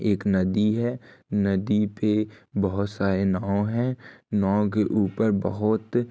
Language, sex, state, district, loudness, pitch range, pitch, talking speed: Hindi, male, Uttarakhand, Uttarkashi, -25 LUFS, 100-110 Hz, 105 Hz, 135 wpm